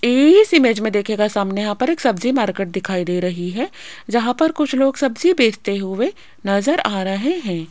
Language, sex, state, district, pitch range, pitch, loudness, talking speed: Hindi, female, Rajasthan, Jaipur, 195-270 Hz, 225 Hz, -18 LUFS, 195 wpm